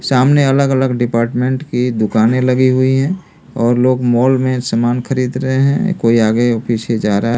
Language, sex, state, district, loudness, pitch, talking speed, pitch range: Hindi, male, Delhi, New Delhi, -14 LUFS, 125 Hz, 180 wpm, 120-130 Hz